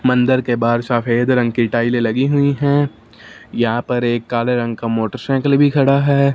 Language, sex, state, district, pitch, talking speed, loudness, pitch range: Hindi, male, Punjab, Fazilka, 120 Hz, 190 wpm, -16 LUFS, 120-135 Hz